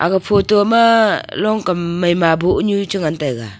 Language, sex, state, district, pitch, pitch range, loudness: Wancho, female, Arunachal Pradesh, Longding, 190 Hz, 170-210 Hz, -15 LUFS